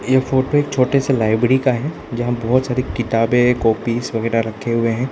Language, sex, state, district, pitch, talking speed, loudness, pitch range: Hindi, male, Arunachal Pradesh, Lower Dibang Valley, 120 Hz, 200 wpm, -18 LUFS, 115-130 Hz